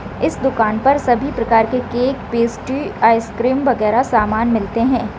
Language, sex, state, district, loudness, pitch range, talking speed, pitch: Hindi, female, Rajasthan, Nagaur, -16 LUFS, 225-260 Hz, 150 wpm, 235 Hz